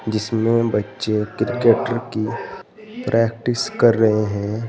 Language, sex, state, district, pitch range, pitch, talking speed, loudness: Hindi, male, Uttar Pradesh, Saharanpur, 110-120 Hz, 115 Hz, 100 wpm, -19 LUFS